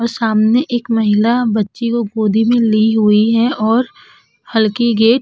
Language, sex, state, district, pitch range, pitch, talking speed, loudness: Hindi, female, Uttar Pradesh, Budaun, 215-235 Hz, 225 Hz, 170 wpm, -14 LUFS